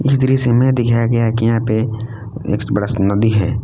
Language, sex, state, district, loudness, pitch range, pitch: Hindi, male, Jharkhand, Palamu, -16 LUFS, 110-125 Hz, 115 Hz